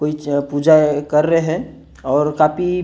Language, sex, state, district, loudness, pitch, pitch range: Hindi, male, Maharashtra, Gondia, -16 LUFS, 150 Hz, 145-160 Hz